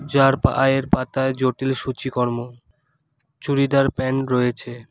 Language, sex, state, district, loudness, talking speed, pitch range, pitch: Bengali, male, West Bengal, Alipurduar, -20 LUFS, 100 wpm, 125-140 Hz, 130 Hz